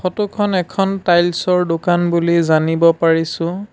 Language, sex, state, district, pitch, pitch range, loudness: Assamese, male, Assam, Sonitpur, 175 Hz, 165-185 Hz, -16 LUFS